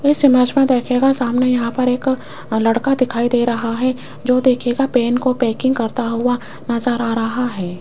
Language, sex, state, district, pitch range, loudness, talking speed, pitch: Hindi, female, Rajasthan, Jaipur, 235-255 Hz, -17 LUFS, 185 wpm, 245 Hz